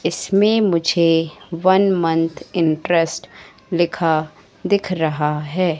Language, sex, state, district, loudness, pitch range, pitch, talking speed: Hindi, female, Madhya Pradesh, Katni, -18 LUFS, 160-185 Hz, 165 Hz, 95 wpm